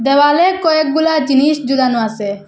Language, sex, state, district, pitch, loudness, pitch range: Bengali, female, Assam, Hailakandi, 280 Hz, -13 LUFS, 255-310 Hz